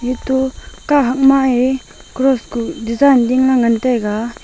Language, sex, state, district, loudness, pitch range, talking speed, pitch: Wancho, female, Arunachal Pradesh, Longding, -15 LUFS, 240-265 Hz, 135 wpm, 255 Hz